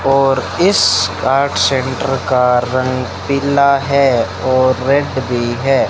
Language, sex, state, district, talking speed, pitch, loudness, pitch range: Hindi, male, Rajasthan, Bikaner, 120 wpm, 130 Hz, -14 LUFS, 125-140 Hz